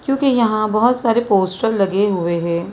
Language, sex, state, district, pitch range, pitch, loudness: Hindi, female, Maharashtra, Mumbai Suburban, 190-235 Hz, 215 Hz, -17 LUFS